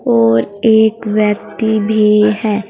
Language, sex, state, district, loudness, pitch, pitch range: Hindi, female, Uttar Pradesh, Saharanpur, -13 LUFS, 210 Hz, 210-220 Hz